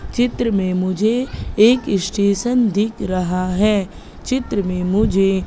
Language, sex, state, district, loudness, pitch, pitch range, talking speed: Hindi, female, Madhya Pradesh, Katni, -18 LUFS, 205 Hz, 185-230 Hz, 120 wpm